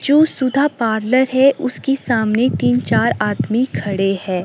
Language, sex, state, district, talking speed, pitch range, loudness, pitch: Hindi, female, Himachal Pradesh, Shimla, 150 wpm, 200-265 Hz, -16 LUFS, 240 Hz